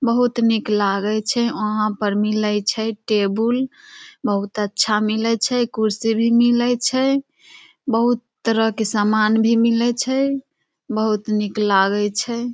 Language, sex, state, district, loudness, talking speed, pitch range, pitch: Maithili, female, Bihar, Samastipur, -19 LUFS, 140 wpm, 210-240 Hz, 225 Hz